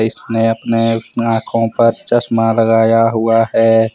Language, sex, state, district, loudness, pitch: Hindi, male, Jharkhand, Deoghar, -14 LUFS, 115 Hz